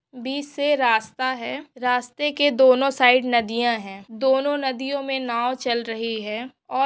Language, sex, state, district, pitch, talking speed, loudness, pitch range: Hindi, female, Maharashtra, Pune, 255 Hz, 140 wpm, -22 LUFS, 235-270 Hz